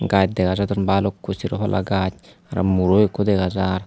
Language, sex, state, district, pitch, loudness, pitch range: Chakma, male, Tripura, Unakoti, 95 Hz, -20 LUFS, 95-100 Hz